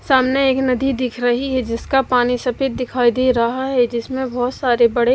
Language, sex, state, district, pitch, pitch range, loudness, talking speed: Hindi, female, Odisha, Malkangiri, 255 Hz, 245-260 Hz, -18 LUFS, 200 wpm